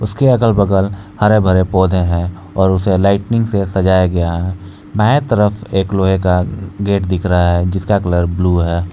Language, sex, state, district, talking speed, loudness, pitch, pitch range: Hindi, male, Jharkhand, Palamu, 180 wpm, -14 LUFS, 95 Hz, 90-100 Hz